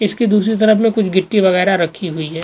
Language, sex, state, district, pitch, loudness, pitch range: Hindi, male, Goa, North and South Goa, 195 Hz, -14 LUFS, 180-215 Hz